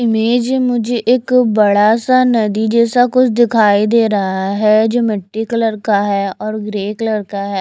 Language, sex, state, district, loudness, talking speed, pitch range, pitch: Hindi, female, Chandigarh, Chandigarh, -14 LUFS, 175 wpm, 205-240 Hz, 220 Hz